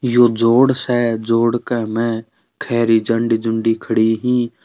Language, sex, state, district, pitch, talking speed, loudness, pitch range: Marwari, male, Rajasthan, Churu, 115 Hz, 140 wpm, -17 LUFS, 115-120 Hz